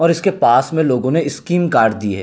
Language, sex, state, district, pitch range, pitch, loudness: Hindi, male, Uttar Pradesh, Hamirpur, 125-170 Hz, 160 Hz, -15 LUFS